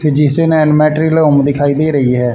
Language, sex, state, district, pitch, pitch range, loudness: Hindi, male, Haryana, Charkhi Dadri, 150 Hz, 145-155 Hz, -11 LUFS